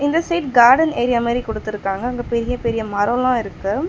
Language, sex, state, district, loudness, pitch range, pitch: Tamil, female, Tamil Nadu, Chennai, -18 LUFS, 220-255 Hz, 240 Hz